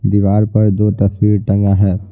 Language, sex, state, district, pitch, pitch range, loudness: Hindi, male, Bihar, Patna, 100 Hz, 100-105 Hz, -13 LUFS